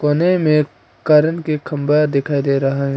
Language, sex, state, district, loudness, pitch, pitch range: Hindi, female, Arunachal Pradesh, Papum Pare, -16 LUFS, 150 Hz, 140-155 Hz